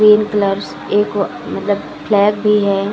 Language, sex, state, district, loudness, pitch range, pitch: Hindi, female, Chhattisgarh, Balrampur, -16 LUFS, 200-210 Hz, 205 Hz